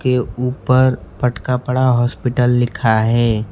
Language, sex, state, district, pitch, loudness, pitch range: Hindi, male, West Bengal, Alipurduar, 125 Hz, -16 LUFS, 115-125 Hz